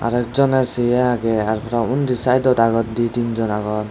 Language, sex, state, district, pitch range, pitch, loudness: Chakma, male, Tripura, West Tripura, 115-125 Hz, 120 Hz, -18 LUFS